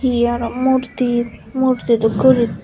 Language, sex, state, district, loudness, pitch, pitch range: Chakma, female, Tripura, Unakoti, -17 LUFS, 240 Hz, 235-260 Hz